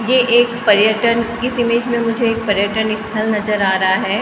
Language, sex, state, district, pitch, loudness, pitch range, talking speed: Hindi, female, Maharashtra, Gondia, 225 Hz, -15 LUFS, 210-235 Hz, 230 wpm